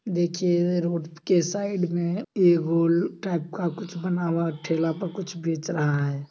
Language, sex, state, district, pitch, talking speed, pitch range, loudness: Hindi, male, Bihar, Samastipur, 175 Hz, 160 wpm, 165-180 Hz, -25 LUFS